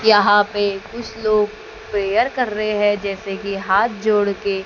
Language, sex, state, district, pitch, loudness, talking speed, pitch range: Hindi, female, Maharashtra, Gondia, 205 Hz, -19 LUFS, 165 wpm, 200-215 Hz